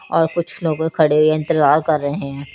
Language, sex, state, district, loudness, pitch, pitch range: Hindi, female, Chandigarh, Chandigarh, -17 LUFS, 155 Hz, 150-160 Hz